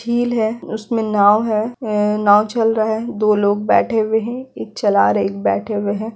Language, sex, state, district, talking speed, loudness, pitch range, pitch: Hindi, female, Bihar, Kishanganj, 215 wpm, -17 LUFS, 205-225 Hz, 220 Hz